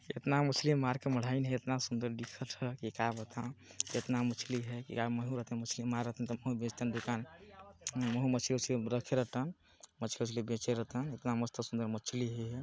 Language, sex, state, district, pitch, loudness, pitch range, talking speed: Hindi, male, Chhattisgarh, Balrampur, 120 Hz, -37 LUFS, 120-130 Hz, 180 wpm